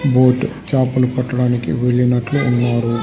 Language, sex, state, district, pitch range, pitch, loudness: Telugu, male, Andhra Pradesh, Sri Satya Sai, 120-130 Hz, 125 Hz, -16 LUFS